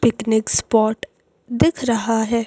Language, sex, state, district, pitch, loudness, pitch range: Hindi, female, Madhya Pradesh, Bhopal, 225 Hz, -19 LUFS, 220-235 Hz